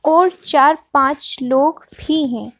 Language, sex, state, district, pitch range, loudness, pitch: Hindi, female, Madhya Pradesh, Bhopal, 270-310 Hz, -16 LUFS, 290 Hz